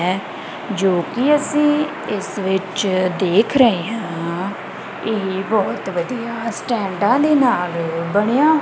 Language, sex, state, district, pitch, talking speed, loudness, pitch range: Punjabi, female, Punjab, Kapurthala, 205 Hz, 110 wpm, -19 LUFS, 190-245 Hz